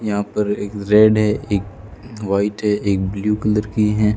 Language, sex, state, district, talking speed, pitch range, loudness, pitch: Hindi, male, Rajasthan, Bikaner, 185 wpm, 100-105 Hz, -18 LUFS, 105 Hz